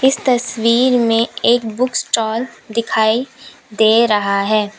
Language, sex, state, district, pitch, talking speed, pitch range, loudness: Hindi, female, Uttar Pradesh, Lalitpur, 230 Hz, 125 wpm, 220-250 Hz, -15 LUFS